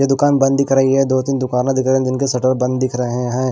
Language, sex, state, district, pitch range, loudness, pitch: Hindi, male, Bihar, Kaimur, 130-135 Hz, -16 LUFS, 130 Hz